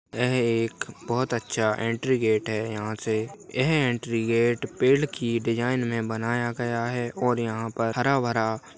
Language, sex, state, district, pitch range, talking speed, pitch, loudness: Hindi, male, Bihar, Darbhanga, 115-125 Hz, 155 wpm, 115 Hz, -26 LUFS